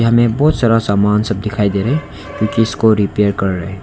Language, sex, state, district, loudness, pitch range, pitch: Hindi, male, Arunachal Pradesh, Longding, -15 LUFS, 100-115 Hz, 105 Hz